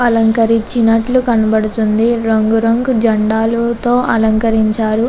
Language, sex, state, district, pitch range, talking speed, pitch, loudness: Telugu, female, Andhra Pradesh, Chittoor, 220-235 Hz, 85 wpm, 225 Hz, -13 LUFS